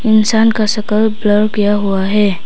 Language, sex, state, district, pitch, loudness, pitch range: Hindi, female, Arunachal Pradesh, Papum Pare, 215 Hz, -13 LUFS, 205-215 Hz